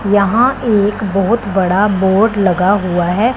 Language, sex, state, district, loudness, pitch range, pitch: Hindi, female, Punjab, Pathankot, -13 LUFS, 190-220 Hz, 200 Hz